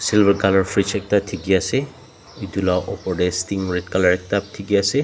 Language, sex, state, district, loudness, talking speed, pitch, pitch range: Nagamese, male, Nagaland, Dimapur, -20 LUFS, 190 wpm, 100 Hz, 95-100 Hz